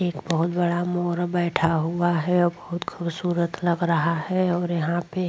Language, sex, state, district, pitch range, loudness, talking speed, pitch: Hindi, female, Goa, North and South Goa, 170-175 Hz, -24 LUFS, 190 wpm, 175 Hz